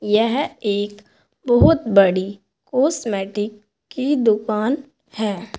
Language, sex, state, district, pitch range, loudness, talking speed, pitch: Hindi, female, Uttar Pradesh, Saharanpur, 205-255 Hz, -19 LUFS, 85 wpm, 215 Hz